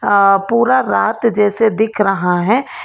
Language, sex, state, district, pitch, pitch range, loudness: Hindi, female, Karnataka, Bangalore, 215 Hz, 200-230 Hz, -14 LUFS